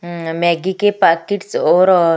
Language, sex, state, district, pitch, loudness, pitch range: Hindi, female, Chhattisgarh, Sukma, 175 Hz, -15 LUFS, 170-190 Hz